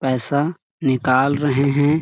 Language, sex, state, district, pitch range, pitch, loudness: Hindi, male, Chhattisgarh, Sarguja, 130-150 Hz, 140 Hz, -19 LUFS